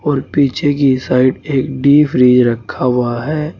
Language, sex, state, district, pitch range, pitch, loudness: Hindi, male, Uttar Pradesh, Saharanpur, 125-145 Hz, 135 Hz, -13 LUFS